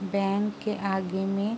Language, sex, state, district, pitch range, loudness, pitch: Hindi, female, Uttar Pradesh, Jalaun, 195-205 Hz, -28 LUFS, 200 Hz